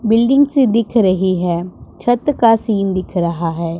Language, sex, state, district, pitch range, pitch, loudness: Hindi, male, Punjab, Pathankot, 175-235 Hz, 200 Hz, -15 LUFS